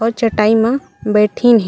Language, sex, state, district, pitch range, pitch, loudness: Chhattisgarhi, female, Chhattisgarh, Raigarh, 210-235 Hz, 225 Hz, -14 LUFS